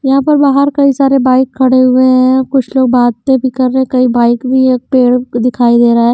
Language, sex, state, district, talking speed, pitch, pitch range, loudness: Hindi, female, Haryana, Jhajjar, 245 wpm, 255 Hz, 245-265 Hz, -10 LUFS